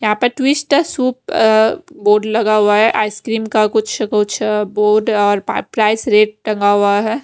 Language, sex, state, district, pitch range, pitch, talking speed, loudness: Hindi, female, Haryana, Rohtak, 210-225 Hz, 215 Hz, 175 wpm, -14 LUFS